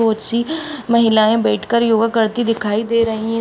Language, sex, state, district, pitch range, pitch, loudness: Hindi, female, Uttar Pradesh, Jalaun, 220-235 Hz, 230 Hz, -16 LUFS